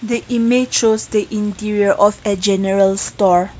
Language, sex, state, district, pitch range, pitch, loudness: English, female, Nagaland, Kohima, 195-225 Hz, 210 Hz, -16 LUFS